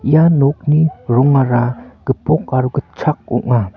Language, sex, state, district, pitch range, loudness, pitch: Garo, male, Meghalaya, North Garo Hills, 125-150 Hz, -15 LUFS, 135 Hz